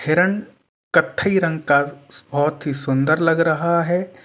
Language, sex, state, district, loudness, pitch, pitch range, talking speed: Hindi, male, Uttar Pradesh, Etah, -19 LUFS, 160 Hz, 145-175 Hz, 140 wpm